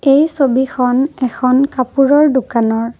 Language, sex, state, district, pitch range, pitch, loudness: Assamese, female, Assam, Kamrup Metropolitan, 250-275 Hz, 260 Hz, -14 LUFS